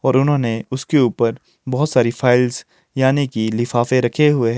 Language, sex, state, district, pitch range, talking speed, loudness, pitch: Hindi, male, Himachal Pradesh, Shimla, 120-140 Hz, 155 wpm, -17 LUFS, 130 Hz